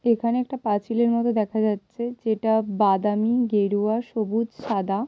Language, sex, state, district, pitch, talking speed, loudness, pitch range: Bengali, female, West Bengal, Malda, 220 Hz, 140 wpm, -23 LUFS, 210-235 Hz